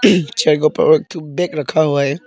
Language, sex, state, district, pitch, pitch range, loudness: Hindi, female, Arunachal Pradesh, Papum Pare, 155 Hz, 150-175 Hz, -15 LUFS